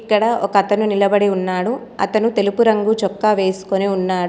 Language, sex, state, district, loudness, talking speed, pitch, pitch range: Telugu, female, Telangana, Komaram Bheem, -17 LUFS, 155 wpm, 200 Hz, 195-215 Hz